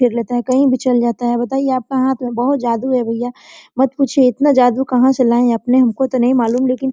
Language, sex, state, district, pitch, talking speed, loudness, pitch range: Hindi, female, Jharkhand, Sahebganj, 255 Hz, 260 wpm, -15 LUFS, 245-265 Hz